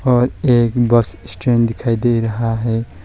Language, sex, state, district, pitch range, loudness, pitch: Hindi, male, West Bengal, Alipurduar, 115-120 Hz, -16 LUFS, 115 Hz